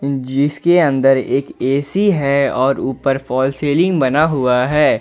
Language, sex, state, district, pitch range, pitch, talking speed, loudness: Hindi, male, Jharkhand, Ranchi, 130-150 Hz, 140 Hz, 145 wpm, -15 LUFS